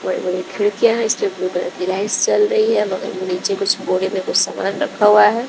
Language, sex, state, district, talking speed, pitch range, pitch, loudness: Hindi, female, Bihar, West Champaran, 260 wpm, 185-215 Hz, 200 Hz, -17 LUFS